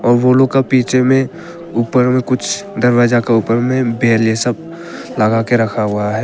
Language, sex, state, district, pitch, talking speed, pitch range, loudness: Hindi, male, Arunachal Pradesh, Papum Pare, 120 Hz, 180 wpm, 115-130 Hz, -14 LUFS